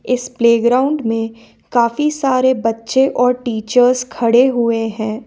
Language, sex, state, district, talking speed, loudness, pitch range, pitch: Hindi, female, Jharkhand, Ranchi, 125 wpm, -15 LUFS, 230-255 Hz, 245 Hz